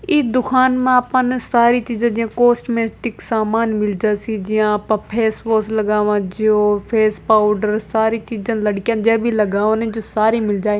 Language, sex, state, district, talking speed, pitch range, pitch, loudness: Hindi, female, Rajasthan, Nagaur, 165 wpm, 210-235 Hz, 220 Hz, -17 LUFS